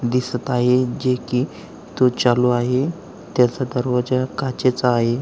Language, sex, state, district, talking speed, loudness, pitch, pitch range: Marathi, male, Maharashtra, Aurangabad, 125 wpm, -20 LUFS, 125 Hz, 125-130 Hz